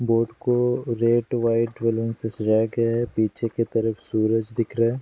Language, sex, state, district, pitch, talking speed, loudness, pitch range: Hindi, male, Bihar, Bhagalpur, 115 Hz, 190 wpm, -23 LUFS, 110-115 Hz